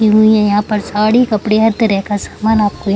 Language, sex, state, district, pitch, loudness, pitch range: Hindi, female, Bihar, Gaya, 215 Hz, -13 LUFS, 205-220 Hz